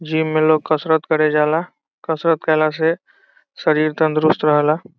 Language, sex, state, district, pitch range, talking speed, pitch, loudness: Bhojpuri, male, Bihar, Saran, 155-160 Hz, 145 wpm, 155 Hz, -17 LUFS